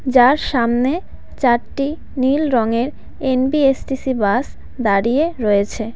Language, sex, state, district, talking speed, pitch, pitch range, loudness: Bengali, female, West Bengal, Cooch Behar, 90 wpm, 255 Hz, 235-275 Hz, -18 LUFS